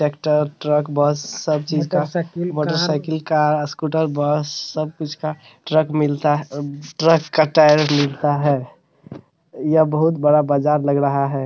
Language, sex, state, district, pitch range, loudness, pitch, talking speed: Hindi, male, Bihar, Araria, 145-155 Hz, -19 LUFS, 150 Hz, 150 wpm